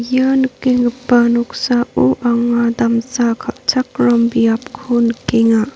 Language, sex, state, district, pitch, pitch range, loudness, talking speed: Garo, female, Meghalaya, North Garo Hills, 240 Hz, 235-250 Hz, -15 LUFS, 85 wpm